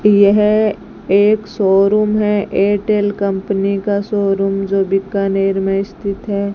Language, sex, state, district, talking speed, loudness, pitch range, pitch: Hindi, female, Rajasthan, Bikaner, 120 wpm, -15 LUFS, 195-210 Hz, 200 Hz